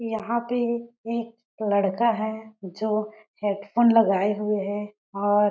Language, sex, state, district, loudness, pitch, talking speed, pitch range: Hindi, female, Chhattisgarh, Balrampur, -25 LUFS, 215 Hz, 120 wpm, 205-230 Hz